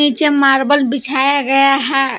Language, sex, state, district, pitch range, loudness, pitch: Hindi, female, Jharkhand, Palamu, 270-285 Hz, -13 LUFS, 275 Hz